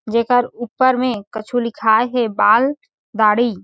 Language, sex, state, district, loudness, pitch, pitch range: Chhattisgarhi, female, Chhattisgarh, Jashpur, -17 LUFS, 235 Hz, 220-250 Hz